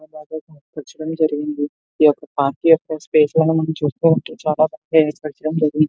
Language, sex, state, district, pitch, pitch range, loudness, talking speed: Telugu, male, Andhra Pradesh, Visakhapatnam, 155 Hz, 150-160 Hz, -18 LUFS, 40 wpm